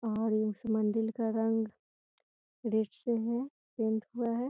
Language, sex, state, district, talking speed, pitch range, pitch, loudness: Hindi, female, Bihar, Gopalganj, 160 wpm, 220-235 Hz, 225 Hz, -33 LUFS